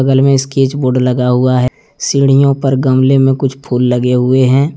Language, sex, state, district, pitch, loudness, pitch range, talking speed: Hindi, male, Jharkhand, Deoghar, 130 Hz, -12 LUFS, 125-135 Hz, 200 wpm